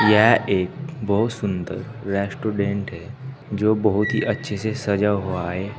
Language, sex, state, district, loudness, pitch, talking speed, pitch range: Hindi, male, Uttar Pradesh, Saharanpur, -22 LUFS, 105 Hz, 145 wpm, 100-115 Hz